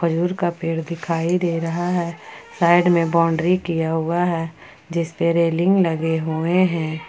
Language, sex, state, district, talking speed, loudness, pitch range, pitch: Hindi, female, Jharkhand, Ranchi, 160 wpm, -20 LUFS, 165-175 Hz, 170 Hz